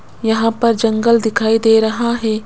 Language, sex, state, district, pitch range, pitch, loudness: Hindi, female, Rajasthan, Jaipur, 220-230 Hz, 225 Hz, -15 LUFS